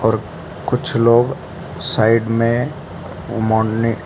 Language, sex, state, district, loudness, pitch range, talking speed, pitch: Hindi, male, Mizoram, Aizawl, -17 LUFS, 110-120 Hz, 90 wpm, 115 Hz